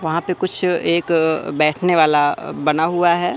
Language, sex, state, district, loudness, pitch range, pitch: Hindi, male, Madhya Pradesh, Katni, -17 LUFS, 155-175 Hz, 165 Hz